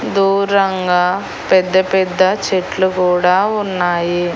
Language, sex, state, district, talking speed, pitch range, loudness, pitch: Telugu, female, Andhra Pradesh, Annamaya, 85 wpm, 180-195 Hz, -15 LUFS, 185 Hz